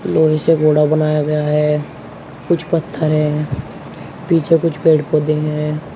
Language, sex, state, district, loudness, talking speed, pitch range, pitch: Hindi, male, Uttar Pradesh, Shamli, -16 LUFS, 140 wpm, 150-160 Hz, 155 Hz